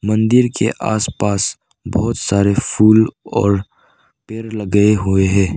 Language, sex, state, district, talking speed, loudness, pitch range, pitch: Hindi, male, Arunachal Pradesh, Lower Dibang Valley, 120 wpm, -15 LUFS, 100-110 Hz, 105 Hz